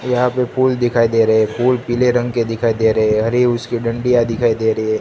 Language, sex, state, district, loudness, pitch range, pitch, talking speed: Hindi, male, Gujarat, Gandhinagar, -16 LUFS, 110-125 Hz, 120 Hz, 265 wpm